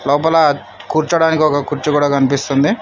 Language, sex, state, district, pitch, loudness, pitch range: Telugu, male, Telangana, Mahabubabad, 145 Hz, -15 LUFS, 140-155 Hz